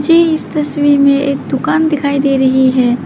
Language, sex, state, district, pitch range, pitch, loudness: Hindi, female, Arunachal Pradesh, Lower Dibang Valley, 270-300 Hz, 280 Hz, -12 LUFS